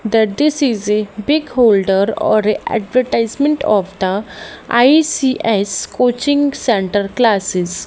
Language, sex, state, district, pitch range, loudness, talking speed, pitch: English, female, Haryana, Jhajjar, 205-265 Hz, -15 LUFS, 115 wpm, 225 Hz